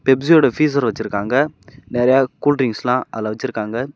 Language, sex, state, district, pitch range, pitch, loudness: Tamil, male, Tamil Nadu, Namakkal, 120-140 Hz, 130 Hz, -18 LUFS